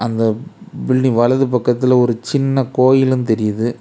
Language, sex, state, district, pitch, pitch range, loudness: Tamil, male, Tamil Nadu, Kanyakumari, 125 Hz, 115-130 Hz, -15 LUFS